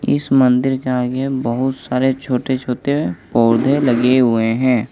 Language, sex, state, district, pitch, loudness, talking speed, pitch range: Hindi, male, Jharkhand, Ranchi, 125 Hz, -16 LUFS, 145 wpm, 120-130 Hz